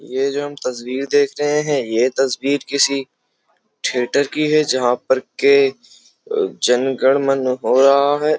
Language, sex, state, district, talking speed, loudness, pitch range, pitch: Hindi, male, Uttar Pradesh, Jyotiba Phule Nagar, 155 wpm, -17 LUFS, 130-145 Hz, 140 Hz